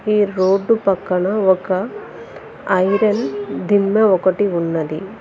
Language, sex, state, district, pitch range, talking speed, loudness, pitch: Telugu, female, Telangana, Mahabubabad, 185-205 Hz, 90 wpm, -17 LUFS, 195 Hz